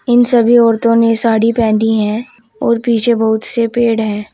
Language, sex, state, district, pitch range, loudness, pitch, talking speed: Hindi, female, Uttar Pradesh, Saharanpur, 220-235 Hz, -12 LUFS, 230 Hz, 180 wpm